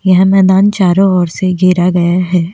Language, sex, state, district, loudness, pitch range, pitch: Hindi, female, Goa, North and South Goa, -10 LUFS, 180-190 Hz, 185 Hz